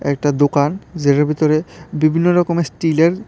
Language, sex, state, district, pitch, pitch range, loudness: Bengali, male, Tripura, West Tripura, 155 Hz, 145-170 Hz, -16 LUFS